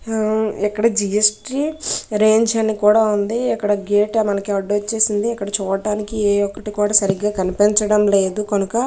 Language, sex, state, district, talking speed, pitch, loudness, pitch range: Telugu, female, Andhra Pradesh, Srikakulam, 135 wpm, 210 Hz, -18 LUFS, 205-220 Hz